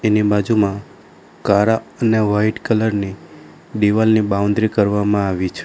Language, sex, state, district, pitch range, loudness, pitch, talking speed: Gujarati, male, Gujarat, Valsad, 100-110 Hz, -17 LUFS, 105 Hz, 125 wpm